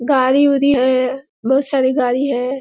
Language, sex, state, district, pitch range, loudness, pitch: Hindi, female, Bihar, Kishanganj, 255-275 Hz, -16 LUFS, 265 Hz